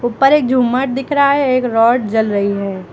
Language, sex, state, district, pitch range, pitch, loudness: Hindi, female, Uttar Pradesh, Lucknow, 220-270 Hz, 245 Hz, -14 LUFS